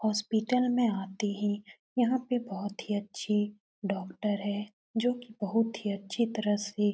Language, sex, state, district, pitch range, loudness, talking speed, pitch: Hindi, female, Uttar Pradesh, Etah, 205-225 Hz, -31 LUFS, 155 wpm, 210 Hz